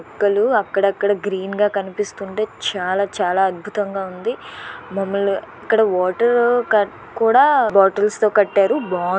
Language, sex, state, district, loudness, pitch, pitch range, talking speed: Telugu, female, Andhra Pradesh, Visakhapatnam, -18 LUFS, 200 Hz, 195-215 Hz, 110 wpm